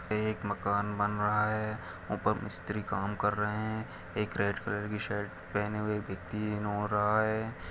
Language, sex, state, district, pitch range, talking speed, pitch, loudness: Hindi, male, Chhattisgarh, Kabirdham, 100-105 Hz, 150 wpm, 105 Hz, -33 LUFS